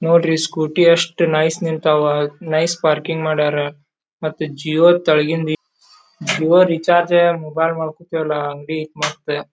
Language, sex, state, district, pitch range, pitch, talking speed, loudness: Kannada, male, Karnataka, Dharwad, 155-170 Hz, 160 Hz, 120 wpm, -17 LUFS